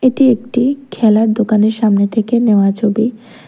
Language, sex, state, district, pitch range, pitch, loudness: Bengali, female, Tripura, West Tripura, 215-240 Hz, 225 Hz, -13 LUFS